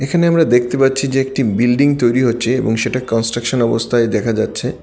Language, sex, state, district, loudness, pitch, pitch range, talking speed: Bengali, male, Tripura, West Tripura, -15 LUFS, 120 Hz, 115-135 Hz, 185 wpm